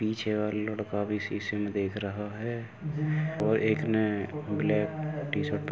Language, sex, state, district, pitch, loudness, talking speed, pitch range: Hindi, male, Uttar Pradesh, Jalaun, 110 Hz, -30 LUFS, 155 wpm, 105-150 Hz